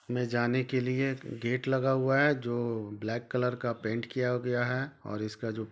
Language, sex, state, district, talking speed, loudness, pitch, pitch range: Hindi, male, Jharkhand, Sahebganj, 200 wpm, -31 LUFS, 125 Hz, 115-130 Hz